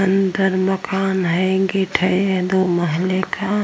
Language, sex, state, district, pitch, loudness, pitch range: Hindi, female, Uttar Pradesh, Jyotiba Phule Nagar, 190 Hz, -18 LUFS, 185-195 Hz